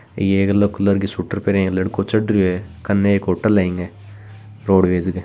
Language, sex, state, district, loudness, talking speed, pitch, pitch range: Hindi, female, Rajasthan, Churu, -18 LUFS, 205 wpm, 100 Hz, 95-100 Hz